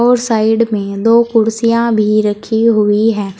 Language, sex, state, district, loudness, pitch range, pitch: Hindi, female, Uttar Pradesh, Saharanpur, -12 LUFS, 210-230 Hz, 220 Hz